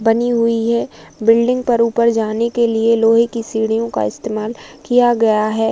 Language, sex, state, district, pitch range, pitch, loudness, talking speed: Hindi, female, Uttar Pradesh, Varanasi, 225-235 Hz, 230 Hz, -16 LUFS, 180 wpm